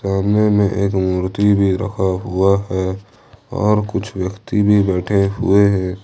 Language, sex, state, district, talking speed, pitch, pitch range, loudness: Hindi, male, Jharkhand, Ranchi, 150 wpm, 100 Hz, 95-105 Hz, -17 LUFS